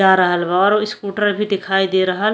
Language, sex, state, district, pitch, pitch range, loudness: Bhojpuri, female, Uttar Pradesh, Ghazipur, 195 Hz, 190-210 Hz, -17 LUFS